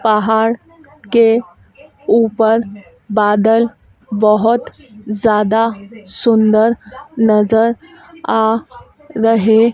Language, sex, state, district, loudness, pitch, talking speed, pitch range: Hindi, female, Madhya Pradesh, Dhar, -14 LUFS, 225 Hz, 60 wpm, 215-235 Hz